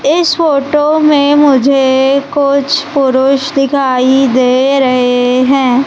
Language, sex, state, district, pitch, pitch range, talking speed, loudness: Hindi, female, Madhya Pradesh, Umaria, 275 Hz, 260-285 Hz, 100 wpm, -10 LUFS